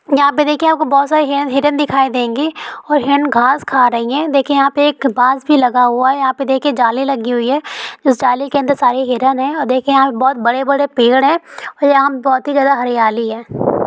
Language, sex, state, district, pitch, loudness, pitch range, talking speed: Hindi, female, Bihar, Supaul, 275 Hz, -13 LUFS, 255-285 Hz, 240 wpm